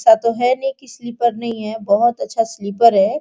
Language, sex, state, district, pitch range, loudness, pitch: Hindi, female, Jharkhand, Sahebganj, 230-305 Hz, -17 LUFS, 245 Hz